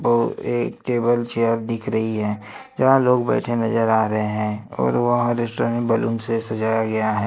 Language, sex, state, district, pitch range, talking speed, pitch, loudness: Hindi, male, Maharashtra, Gondia, 110-120 Hz, 175 wpm, 115 Hz, -21 LUFS